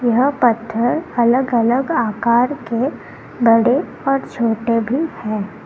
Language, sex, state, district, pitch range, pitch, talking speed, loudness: Hindi, female, Karnataka, Bangalore, 230-260 Hz, 240 Hz, 115 wpm, -17 LUFS